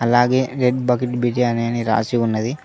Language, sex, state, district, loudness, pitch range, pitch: Telugu, male, Telangana, Mahabubabad, -19 LUFS, 115-125 Hz, 120 Hz